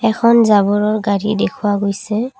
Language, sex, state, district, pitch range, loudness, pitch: Assamese, female, Assam, Kamrup Metropolitan, 205-225 Hz, -15 LUFS, 210 Hz